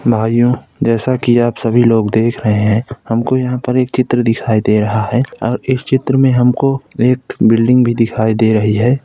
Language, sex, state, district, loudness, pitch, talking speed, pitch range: Hindi, male, Uttar Pradesh, Hamirpur, -13 LUFS, 120 Hz, 205 wpm, 110-125 Hz